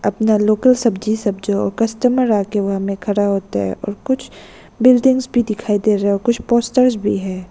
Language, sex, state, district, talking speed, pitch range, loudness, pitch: Hindi, female, Arunachal Pradesh, Lower Dibang Valley, 200 wpm, 200-240 Hz, -17 LUFS, 215 Hz